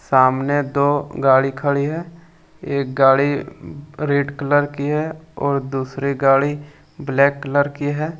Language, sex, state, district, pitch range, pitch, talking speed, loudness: Hindi, male, Jharkhand, Deoghar, 140-145 Hz, 145 Hz, 130 wpm, -19 LUFS